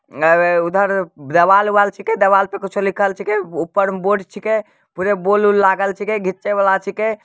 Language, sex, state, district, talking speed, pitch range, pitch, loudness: Maithili, male, Bihar, Samastipur, 175 wpm, 190-205 Hz, 200 Hz, -16 LUFS